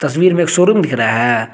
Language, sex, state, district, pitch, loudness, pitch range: Hindi, male, Jharkhand, Garhwa, 155 Hz, -13 LUFS, 120-180 Hz